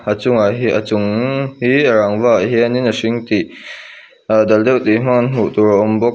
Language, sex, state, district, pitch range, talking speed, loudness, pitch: Mizo, male, Mizoram, Aizawl, 110-125 Hz, 215 wpm, -14 LUFS, 115 Hz